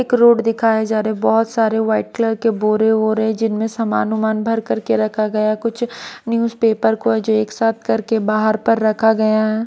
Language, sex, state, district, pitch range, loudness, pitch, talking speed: Hindi, female, Maharashtra, Mumbai Suburban, 215-225 Hz, -17 LUFS, 220 Hz, 200 wpm